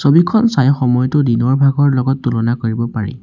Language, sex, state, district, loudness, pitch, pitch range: Assamese, male, Assam, Sonitpur, -14 LUFS, 130 Hz, 120-140 Hz